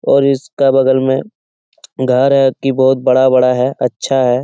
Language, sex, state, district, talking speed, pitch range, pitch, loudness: Hindi, male, Bihar, Lakhisarai, 160 wpm, 130-135 Hz, 130 Hz, -13 LUFS